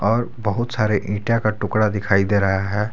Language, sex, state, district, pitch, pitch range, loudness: Hindi, male, Jharkhand, Garhwa, 105 Hz, 100-110 Hz, -20 LUFS